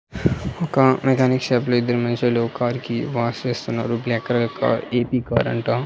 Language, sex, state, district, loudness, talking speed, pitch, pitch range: Telugu, male, Andhra Pradesh, Annamaya, -21 LUFS, 165 wpm, 120 Hz, 120-130 Hz